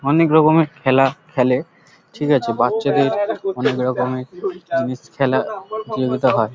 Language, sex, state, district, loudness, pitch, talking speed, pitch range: Bengali, male, West Bengal, Paschim Medinipur, -18 LUFS, 140 Hz, 120 wpm, 130-165 Hz